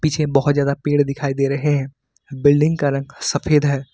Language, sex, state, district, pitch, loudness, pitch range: Hindi, male, Jharkhand, Ranchi, 145 Hz, -18 LUFS, 140-145 Hz